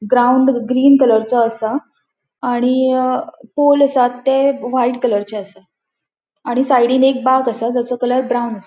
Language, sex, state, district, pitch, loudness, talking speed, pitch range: Konkani, female, Goa, North and South Goa, 250 Hz, -15 LUFS, 140 wpm, 240-260 Hz